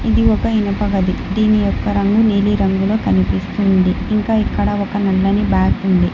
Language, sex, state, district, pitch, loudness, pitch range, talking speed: Telugu, female, Telangana, Hyderabad, 200 Hz, -16 LUFS, 185-210 Hz, 145 wpm